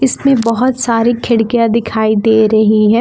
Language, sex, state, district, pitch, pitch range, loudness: Hindi, female, Jharkhand, Palamu, 230 Hz, 220-240 Hz, -12 LUFS